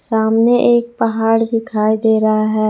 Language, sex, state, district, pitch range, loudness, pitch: Hindi, female, Jharkhand, Palamu, 215-230 Hz, -14 LUFS, 225 Hz